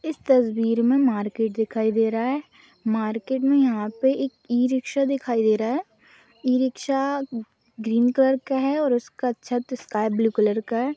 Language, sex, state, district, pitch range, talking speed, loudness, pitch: Hindi, female, Chhattisgarh, Raigarh, 225-265 Hz, 180 wpm, -23 LUFS, 245 Hz